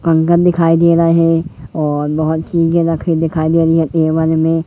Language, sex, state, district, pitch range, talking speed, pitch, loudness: Hindi, male, Madhya Pradesh, Katni, 160-165 Hz, 195 wpm, 165 Hz, -13 LUFS